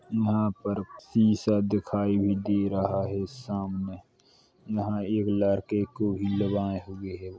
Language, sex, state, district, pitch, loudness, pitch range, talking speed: Hindi, male, Uttar Pradesh, Jalaun, 100 Hz, -28 LUFS, 100-105 Hz, 115 wpm